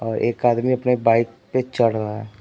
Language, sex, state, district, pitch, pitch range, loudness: Hindi, male, Uttar Pradesh, Etah, 115 Hz, 115-125 Hz, -20 LUFS